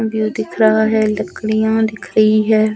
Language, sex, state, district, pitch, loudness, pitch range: Hindi, female, Himachal Pradesh, Shimla, 220 Hz, -15 LUFS, 215-220 Hz